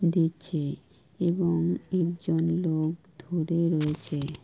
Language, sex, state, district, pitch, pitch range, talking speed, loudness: Bengali, female, West Bengal, Kolkata, 165 Hz, 155-175 Hz, 80 wpm, -28 LUFS